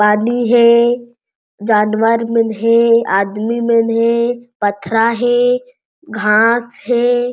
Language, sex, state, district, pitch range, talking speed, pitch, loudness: Chhattisgarhi, female, Chhattisgarh, Jashpur, 225-240 Hz, 100 wpm, 230 Hz, -14 LUFS